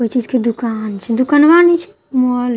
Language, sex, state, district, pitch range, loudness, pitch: Maithili, female, Bihar, Katihar, 235-290 Hz, -14 LUFS, 250 Hz